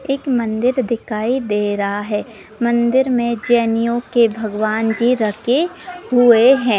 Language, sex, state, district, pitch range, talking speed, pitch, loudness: Hindi, female, Uttar Pradesh, Budaun, 220-255 Hz, 130 wpm, 235 Hz, -17 LUFS